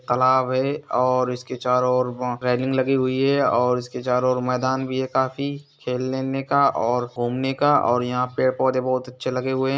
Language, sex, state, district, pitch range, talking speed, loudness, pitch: Hindi, male, Bihar, Gaya, 125-130 Hz, 210 wpm, -22 LUFS, 130 Hz